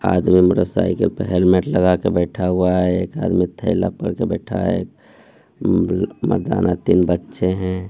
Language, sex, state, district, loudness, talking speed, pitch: Hindi, male, Bihar, Gaya, -18 LUFS, 165 wpm, 90 Hz